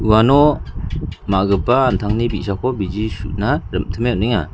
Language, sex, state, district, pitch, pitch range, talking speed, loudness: Garo, male, Meghalaya, West Garo Hills, 105 Hz, 95-120 Hz, 105 wpm, -18 LUFS